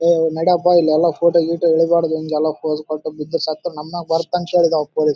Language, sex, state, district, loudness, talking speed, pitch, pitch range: Kannada, male, Karnataka, Raichur, -17 LUFS, 80 wpm, 165 Hz, 155-170 Hz